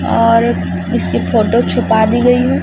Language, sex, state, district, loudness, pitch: Hindi, female, Chhattisgarh, Raipur, -13 LUFS, 230 Hz